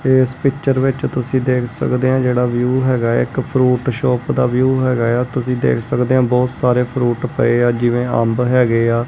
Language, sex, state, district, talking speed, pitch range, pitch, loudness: Punjabi, male, Punjab, Kapurthala, 205 wpm, 120-130 Hz, 125 Hz, -16 LUFS